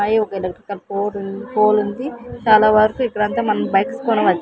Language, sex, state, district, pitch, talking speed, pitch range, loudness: Telugu, female, Andhra Pradesh, Sri Satya Sai, 210 Hz, 160 wpm, 200-225 Hz, -18 LUFS